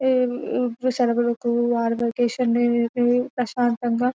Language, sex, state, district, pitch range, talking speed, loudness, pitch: Telugu, female, Telangana, Nalgonda, 235-250 Hz, 85 wpm, -22 LUFS, 240 Hz